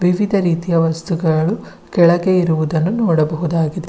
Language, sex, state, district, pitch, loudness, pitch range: Kannada, female, Karnataka, Bidar, 170 Hz, -16 LUFS, 160-180 Hz